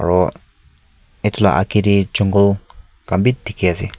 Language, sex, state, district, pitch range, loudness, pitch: Nagamese, male, Nagaland, Kohima, 90-100 Hz, -17 LUFS, 100 Hz